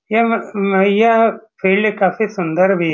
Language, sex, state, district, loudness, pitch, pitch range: Hindi, male, Bihar, Saran, -15 LUFS, 200 Hz, 190-220 Hz